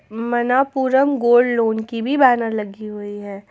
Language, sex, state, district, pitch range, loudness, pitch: Hindi, female, Jharkhand, Ranchi, 215-255 Hz, -18 LUFS, 235 Hz